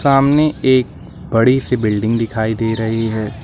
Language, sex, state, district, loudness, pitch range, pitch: Hindi, male, Uttar Pradesh, Lucknow, -16 LUFS, 110-135 Hz, 115 Hz